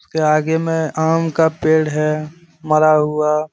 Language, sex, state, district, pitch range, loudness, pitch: Hindi, male, Jharkhand, Sahebganj, 155-160 Hz, -16 LUFS, 155 Hz